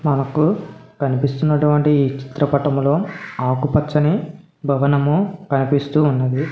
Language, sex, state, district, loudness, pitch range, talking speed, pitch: Telugu, male, Telangana, Hyderabad, -18 LUFS, 140-155 Hz, 75 wpm, 145 Hz